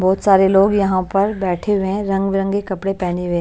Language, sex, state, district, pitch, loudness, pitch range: Hindi, female, Maharashtra, Washim, 195 Hz, -17 LUFS, 185-200 Hz